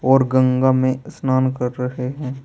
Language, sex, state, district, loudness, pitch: Hindi, male, Uttar Pradesh, Saharanpur, -19 LUFS, 130 Hz